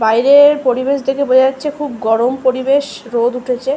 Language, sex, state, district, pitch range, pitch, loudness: Bengali, female, West Bengal, Malda, 245-280 Hz, 260 Hz, -14 LUFS